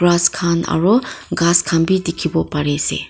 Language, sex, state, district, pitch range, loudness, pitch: Nagamese, female, Nagaland, Kohima, 150-175 Hz, -17 LUFS, 170 Hz